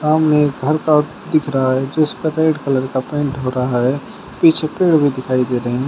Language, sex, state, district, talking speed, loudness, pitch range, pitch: Hindi, male, Uttar Pradesh, Shamli, 235 wpm, -17 LUFS, 130-155 Hz, 145 Hz